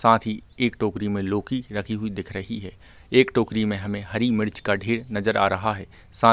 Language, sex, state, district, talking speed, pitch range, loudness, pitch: Hindi, male, Chhattisgarh, Bilaspur, 225 wpm, 100-115 Hz, -24 LUFS, 105 Hz